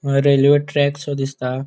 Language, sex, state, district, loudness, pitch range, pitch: Konkani, male, Goa, North and South Goa, -17 LUFS, 135-145 Hz, 140 Hz